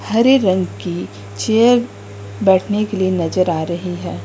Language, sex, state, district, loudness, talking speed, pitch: Hindi, female, Uttar Pradesh, Lucknow, -17 LUFS, 155 wpm, 180 Hz